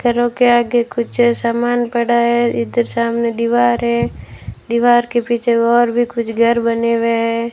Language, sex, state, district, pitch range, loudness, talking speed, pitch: Hindi, female, Rajasthan, Bikaner, 235-240 Hz, -15 LUFS, 165 wpm, 235 Hz